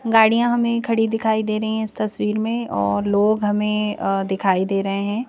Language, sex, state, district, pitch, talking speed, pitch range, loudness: Hindi, female, Madhya Pradesh, Bhopal, 215 Hz, 195 wpm, 200-225 Hz, -20 LUFS